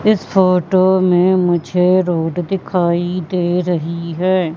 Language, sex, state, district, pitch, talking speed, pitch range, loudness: Hindi, female, Madhya Pradesh, Katni, 180 Hz, 120 wpm, 175-185 Hz, -15 LUFS